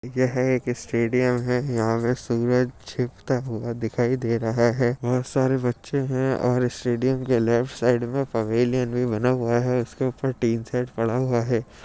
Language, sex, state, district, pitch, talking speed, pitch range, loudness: Hindi, male, Uttar Pradesh, Jyotiba Phule Nagar, 125 Hz, 175 wpm, 115-125 Hz, -24 LUFS